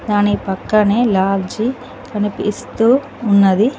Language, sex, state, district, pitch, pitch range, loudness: Telugu, female, Telangana, Mahabubabad, 210 Hz, 200-235 Hz, -16 LUFS